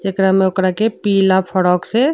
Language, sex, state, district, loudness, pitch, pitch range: Bhojpuri, female, Uttar Pradesh, Deoria, -15 LUFS, 190 Hz, 190-205 Hz